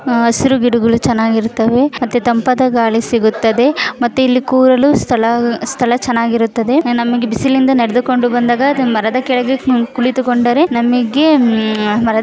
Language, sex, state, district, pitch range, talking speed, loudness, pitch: Kannada, female, Karnataka, Mysore, 230-255 Hz, 115 wpm, -13 LUFS, 240 Hz